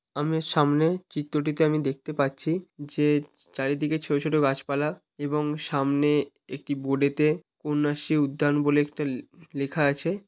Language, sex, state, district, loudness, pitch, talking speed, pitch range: Bengali, male, West Bengal, Malda, -26 LUFS, 150 Hz, 135 wpm, 140-155 Hz